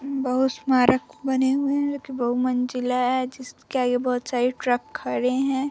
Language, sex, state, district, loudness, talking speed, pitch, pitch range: Hindi, female, Bihar, Vaishali, -23 LUFS, 145 wpm, 255 Hz, 250-270 Hz